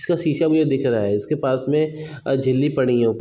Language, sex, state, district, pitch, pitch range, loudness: Hindi, male, Bihar, East Champaran, 135 Hz, 130-155 Hz, -20 LUFS